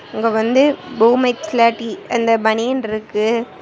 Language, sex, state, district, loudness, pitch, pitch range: Tamil, female, Tamil Nadu, Kanyakumari, -16 LUFS, 230 Hz, 220-250 Hz